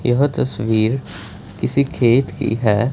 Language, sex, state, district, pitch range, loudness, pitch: Hindi, male, Punjab, Fazilka, 105-130 Hz, -18 LUFS, 115 Hz